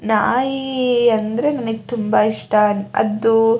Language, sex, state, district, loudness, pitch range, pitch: Kannada, female, Karnataka, Shimoga, -17 LUFS, 215-245 Hz, 225 Hz